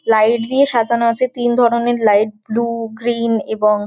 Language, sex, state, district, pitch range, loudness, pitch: Bengali, female, West Bengal, Jhargram, 220-240 Hz, -16 LUFS, 230 Hz